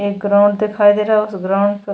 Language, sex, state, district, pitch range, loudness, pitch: Hindi, female, Goa, North and South Goa, 200-210 Hz, -15 LUFS, 205 Hz